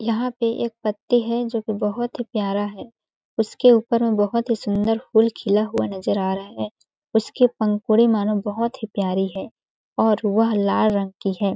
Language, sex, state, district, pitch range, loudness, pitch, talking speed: Hindi, female, Chhattisgarh, Balrampur, 205-230 Hz, -21 LUFS, 220 Hz, 190 wpm